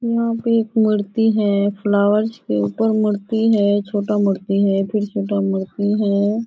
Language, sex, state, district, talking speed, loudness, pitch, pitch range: Hindi, female, Bihar, Kishanganj, 165 wpm, -18 LUFS, 205 Hz, 200-220 Hz